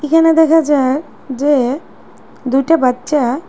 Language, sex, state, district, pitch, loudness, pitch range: Bengali, female, Assam, Hailakandi, 290 Hz, -13 LUFS, 260-320 Hz